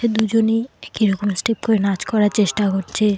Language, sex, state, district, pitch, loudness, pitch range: Bengali, female, West Bengal, Alipurduar, 210 Hz, -19 LUFS, 200-225 Hz